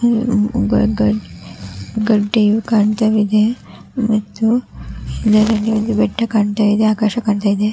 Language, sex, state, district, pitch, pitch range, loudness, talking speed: Kannada, female, Karnataka, Raichur, 215 Hz, 205-220 Hz, -16 LUFS, 95 wpm